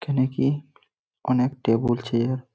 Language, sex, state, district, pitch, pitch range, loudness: Bengali, male, West Bengal, Malda, 130 Hz, 120-135 Hz, -24 LUFS